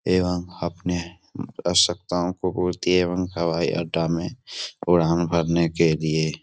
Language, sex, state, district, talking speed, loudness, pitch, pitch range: Hindi, male, Uttar Pradesh, Etah, 120 wpm, -23 LUFS, 85 Hz, 85-90 Hz